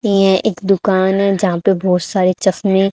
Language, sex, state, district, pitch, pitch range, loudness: Hindi, female, Haryana, Charkhi Dadri, 195 Hz, 185-195 Hz, -15 LUFS